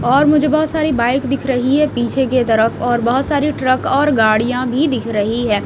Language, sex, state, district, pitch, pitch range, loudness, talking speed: Hindi, female, Haryana, Rohtak, 255 Hz, 235-290 Hz, -15 LUFS, 220 wpm